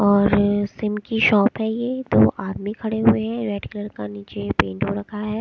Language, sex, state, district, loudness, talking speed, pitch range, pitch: Hindi, female, Haryana, Charkhi Dadri, -21 LUFS, 210 wpm, 200-220 Hz, 205 Hz